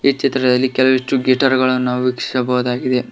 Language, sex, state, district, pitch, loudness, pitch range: Kannada, male, Karnataka, Koppal, 130 Hz, -16 LUFS, 125-130 Hz